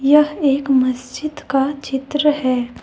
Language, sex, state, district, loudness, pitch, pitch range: Hindi, female, Jharkhand, Deoghar, -18 LUFS, 275 Hz, 260-295 Hz